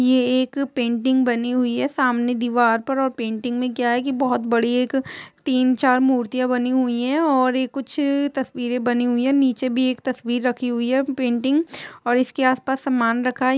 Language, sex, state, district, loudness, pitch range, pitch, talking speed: Hindi, female, Jharkhand, Jamtara, -21 LUFS, 245-265 Hz, 255 Hz, 200 wpm